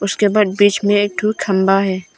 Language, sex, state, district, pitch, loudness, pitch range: Hindi, female, Arunachal Pradesh, Longding, 200 Hz, -15 LUFS, 195-205 Hz